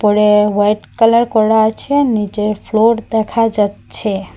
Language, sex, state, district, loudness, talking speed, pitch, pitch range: Bengali, female, Assam, Hailakandi, -14 LUFS, 125 wpm, 215 Hz, 210-225 Hz